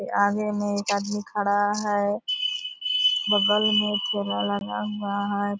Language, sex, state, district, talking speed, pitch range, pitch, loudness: Hindi, female, Bihar, Purnia, 150 wpm, 200-210 Hz, 205 Hz, -24 LUFS